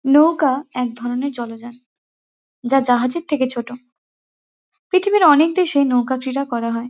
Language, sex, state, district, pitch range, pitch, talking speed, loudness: Bengali, female, West Bengal, Kolkata, 245-295 Hz, 260 Hz, 120 wpm, -18 LUFS